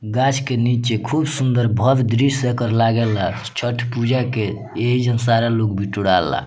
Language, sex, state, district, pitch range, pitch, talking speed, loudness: Bhojpuri, male, Bihar, Muzaffarpur, 115-125 Hz, 120 Hz, 165 wpm, -19 LUFS